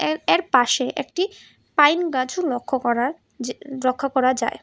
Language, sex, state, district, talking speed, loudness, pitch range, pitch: Bengali, female, Tripura, West Tripura, 155 wpm, -21 LUFS, 245-295 Hz, 260 Hz